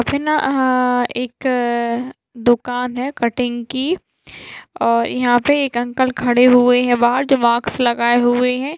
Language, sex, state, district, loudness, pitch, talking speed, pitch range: Hindi, female, Bihar, East Champaran, -17 LUFS, 245 Hz, 150 wpm, 240-260 Hz